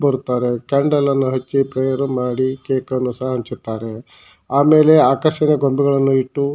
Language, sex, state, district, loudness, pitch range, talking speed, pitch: Kannada, male, Karnataka, Shimoga, -17 LUFS, 125-140 Hz, 130 wpm, 135 Hz